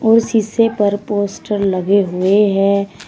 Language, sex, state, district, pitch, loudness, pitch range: Hindi, female, Uttar Pradesh, Shamli, 200 Hz, -15 LUFS, 195-215 Hz